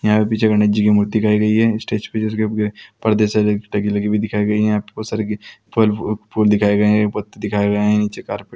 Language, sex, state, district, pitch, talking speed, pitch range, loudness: Hindi, male, Bihar, Araria, 105 Hz, 265 wpm, 105-110 Hz, -18 LUFS